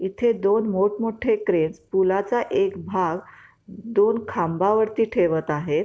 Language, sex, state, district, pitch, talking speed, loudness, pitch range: Marathi, female, Maharashtra, Pune, 200 Hz, 125 wpm, -22 LUFS, 180-220 Hz